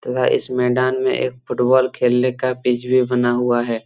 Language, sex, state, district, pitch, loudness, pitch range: Hindi, male, Jharkhand, Jamtara, 125 Hz, -18 LUFS, 125-130 Hz